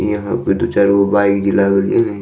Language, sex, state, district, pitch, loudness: Maithili, male, Bihar, Madhepura, 100 Hz, -14 LUFS